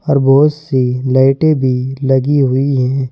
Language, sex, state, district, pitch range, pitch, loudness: Hindi, male, Uttar Pradesh, Saharanpur, 130-140 Hz, 135 Hz, -13 LUFS